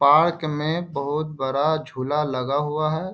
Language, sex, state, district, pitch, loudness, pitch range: Hindi, male, Bihar, Bhagalpur, 150 Hz, -23 LUFS, 140-155 Hz